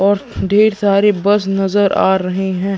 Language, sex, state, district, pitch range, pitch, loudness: Hindi, male, Chhattisgarh, Sukma, 195-205 Hz, 195 Hz, -14 LUFS